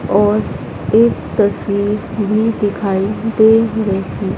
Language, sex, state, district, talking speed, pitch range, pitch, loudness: Hindi, female, Madhya Pradesh, Dhar, 95 wpm, 200-220 Hz, 205 Hz, -15 LUFS